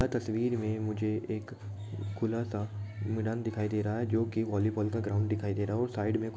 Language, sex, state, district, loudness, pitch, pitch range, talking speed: Hindi, male, Chhattisgarh, Bilaspur, -33 LUFS, 110 Hz, 105-115 Hz, 225 wpm